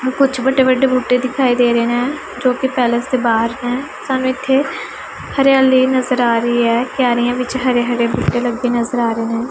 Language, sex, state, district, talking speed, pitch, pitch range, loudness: Punjabi, female, Punjab, Pathankot, 175 wpm, 250 Hz, 240-260 Hz, -16 LUFS